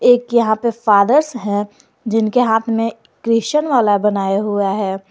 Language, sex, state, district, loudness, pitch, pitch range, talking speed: Hindi, male, Jharkhand, Garhwa, -16 LUFS, 225 Hz, 205-240 Hz, 150 wpm